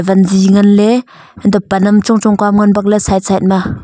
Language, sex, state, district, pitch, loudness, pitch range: Wancho, female, Arunachal Pradesh, Longding, 205 Hz, -10 LUFS, 190-210 Hz